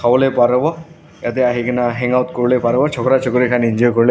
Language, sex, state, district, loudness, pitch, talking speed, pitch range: Nagamese, male, Nagaland, Dimapur, -16 LUFS, 125 Hz, 175 wpm, 120-130 Hz